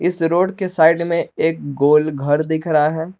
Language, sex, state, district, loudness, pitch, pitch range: Hindi, male, Jharkhand, Palamu, -17 LUFS, 160 Hz, 150-170 Hz